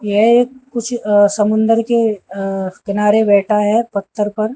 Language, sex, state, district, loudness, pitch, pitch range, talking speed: Hindi, male, Haryana, Jhajjar, -15 LUFS, 210 Hz, 205-230 Hz, 160 wpm